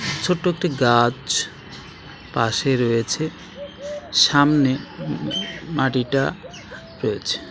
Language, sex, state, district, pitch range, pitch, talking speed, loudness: Bengali, male, West Bengal, Alipurduar, 120-170 Hz, 140 Hz, 65 wpm, -21 LUFS